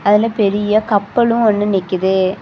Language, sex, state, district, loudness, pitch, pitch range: Tamil, female, Tamil Nadu, Kanyakumari, -15 LUFS, 205 Hz, 195-220 Hz